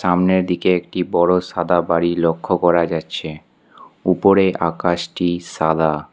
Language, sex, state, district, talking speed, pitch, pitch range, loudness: Bengali, male, West Bengal, Alipurduar, 115 wpm, 85 Hz, 85-90 Hz, -18 LUFS